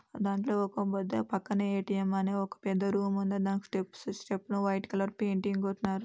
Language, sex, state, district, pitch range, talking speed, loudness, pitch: Telugu, female, Andhra Pradesh, Anantapur, 195-200 Hz, 150 wpm, -32 LUFS, 195 Hz